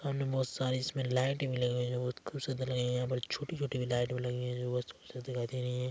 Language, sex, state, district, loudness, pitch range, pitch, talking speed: Hindi, male, Chhattisgarh, Korba, -35 LUFS, 125-130 Hz, 125 Hz, 295 wpm